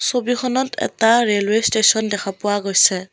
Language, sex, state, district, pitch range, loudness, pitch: Assamese, female, Assam, Kamrup Metropolitan, 200-245 Hz, -17 LUFS, 220 Hz